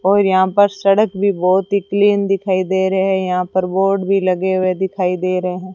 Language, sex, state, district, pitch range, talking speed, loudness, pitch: Hindi, female, Rajasthan, Bikaner, 185-195 Hz, 220 wpm, -16 LUFS, 190 Hz